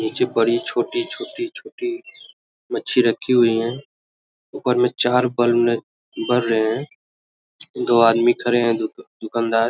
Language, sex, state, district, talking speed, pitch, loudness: Hindi, male, Bihar, Araria, 130 wpm, 120 Hz, -20 LUFS